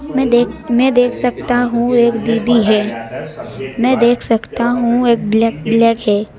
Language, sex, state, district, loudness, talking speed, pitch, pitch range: Hindi, male, Madhya Pradesh, Bhopal, -14 LUFS, 160 wpm, 235 Hz, 230-245 Hz